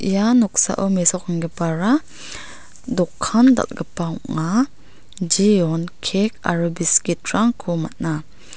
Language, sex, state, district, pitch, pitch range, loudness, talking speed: Garo, female, Meghalaya, South Garo Hills, 185 Hz, 170-215 Hz, -19 LUFS, 85 wpm